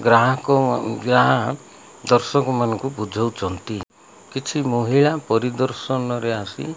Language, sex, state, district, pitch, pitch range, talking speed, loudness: Odia, male, Odisha, Malkangiri, 120 Hz, 115-135 Hz, 100 wpm, -20 LUFS